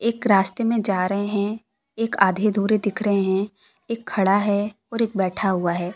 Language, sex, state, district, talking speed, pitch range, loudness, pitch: Hindi, female, Jharkhand, Deoghar, 190 wpm, 195-220 Hz, -22 LUFS, 205 Hz